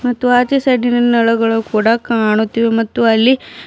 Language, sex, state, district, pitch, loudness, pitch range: Kannada, female, Karnataka, Bidar, 230 Hz, -13 LUFS, 225-245 Hz